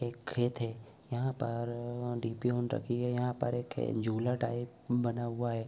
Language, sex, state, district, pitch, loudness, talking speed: Hindi, male, Bihar, Gopalganj, 120 Hz, -35 LUFS, 170 wpm